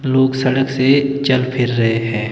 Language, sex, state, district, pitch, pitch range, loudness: Hindi, male, Himachal Pradesh, Shimla, 130 Hz, 120-135 Hz, -16 LUFS